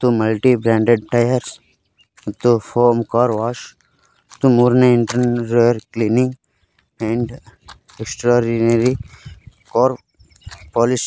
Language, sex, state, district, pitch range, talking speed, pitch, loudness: Kannada, male, Karnataka, Koppal, 115-125 Hz, 85 wpm, 120 Hz, -17 LUFS